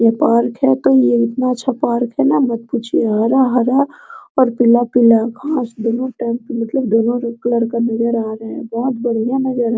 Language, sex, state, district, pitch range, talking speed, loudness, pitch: Hindi, female, Bihar, Araria, 230-260 Hz, 190 wpm, -16 LUFS, 240 Hz